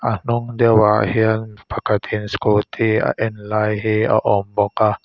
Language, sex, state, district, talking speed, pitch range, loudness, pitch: Mizo, male, Mizoram, Aizawl, 190 wpm, 105-110 Hz, -18 LUFS, 110 Hz